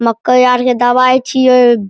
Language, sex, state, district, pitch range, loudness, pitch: Maithili, male, Bihar, Araria, 245-255 Hz, -10 LUFS, 250 Hz